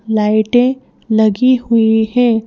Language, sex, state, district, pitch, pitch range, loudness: Hindi, female, Madhya Pradesh, Bhopal, 225 Hz, 220-245 Hz, -13 LUFS